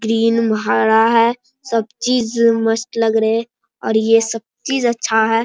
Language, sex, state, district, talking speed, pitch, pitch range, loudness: Hindi, male, Bihar, Bhagalpur, 155 wpm, 225 Hz, 225-235 Hz, -16 LUFS